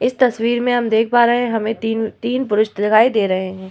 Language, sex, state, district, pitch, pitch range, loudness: Hindi, female, Bihar, Vaishali, 225 Hz, 215-240 Hz, -17 LUFS